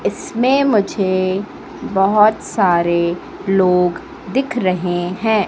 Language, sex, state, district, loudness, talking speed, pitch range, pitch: Hindi, female, Madhya Pradesh, Katni, -17 LUFS, 85 wpm, 180-220 Hz, 195 Hz